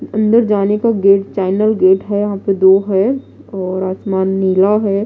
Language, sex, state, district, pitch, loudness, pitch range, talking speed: Hindi, female, Bihar, Katihar, 195 Hz, -14 LUFS, 190-210 Hz, 180 wpm